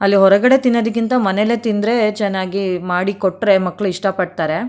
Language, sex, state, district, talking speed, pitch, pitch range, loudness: Kannada, female, Karnataka, Mysore, 140 wpm, 200 Hz, 190-225 Hz, -16 LUFS